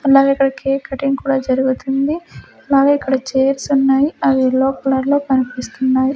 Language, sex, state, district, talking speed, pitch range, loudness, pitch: Telugu, female, Andhra Pradesh, Sri Satya Sai, 155 wpm, 265-275 Hz, -16 LUFS, 270 Hz